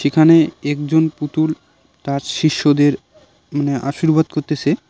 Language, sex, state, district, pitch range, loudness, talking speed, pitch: Bengali, male, West Bengal, Cooch Behar, 145-160 Hz, -17 LUFS, 100 wpm, 150 Hz